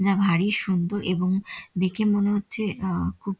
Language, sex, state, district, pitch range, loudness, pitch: Bengali, female, West Bengal, Dakshin Dinajpur, 185-205 Hz, -25 LUFS, 195 Hz